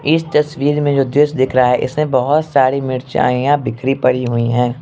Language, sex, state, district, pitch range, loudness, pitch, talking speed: Hindi, male, Arunachal Pradesh, Lower Dibang Valley, 125-150 Hz, -15 LUFS, 135 Hz, 200 wpm